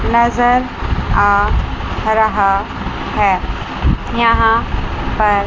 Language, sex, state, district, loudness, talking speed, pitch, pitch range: Hindi, female, Chandigarh, Chandigarh, -15 LUFS, 65 wpm, 220 Hz, 205-235 Hz